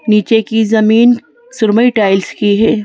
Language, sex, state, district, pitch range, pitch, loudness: Hindi, female, Madhya Pradesh, Bhopal, 210-235 Hz, 220 Hz, -11 LUFS